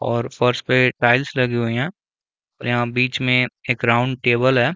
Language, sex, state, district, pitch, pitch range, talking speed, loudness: Hindi, male, Chhattisgarh, Rajnandgaon, 125 Hz, 120-130 Hz, 190 wpm, -19 LUFS